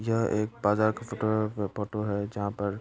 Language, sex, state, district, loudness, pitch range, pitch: Hindi, male, Uttar Pradesh, Varanasi, -29 LUFS, 100-110 Hz, 105 Hz